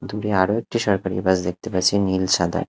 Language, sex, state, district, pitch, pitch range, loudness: Bengali, male, Odisha, Khordha, 95 Hz, 95-105 Hz, -21 LUFS